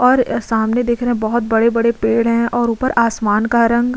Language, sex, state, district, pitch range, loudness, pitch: Hindi, female, Uttar Pradesh, Budaun, 225-240 Hz, -16 LUFS, 235 Hz